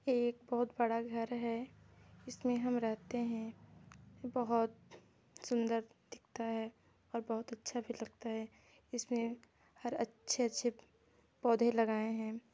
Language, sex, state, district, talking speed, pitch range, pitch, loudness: Hindi, female, Chhattisgarh, Sarguja, 125 wpm, 225-240 Hz, 235 Hz, -38 LUFS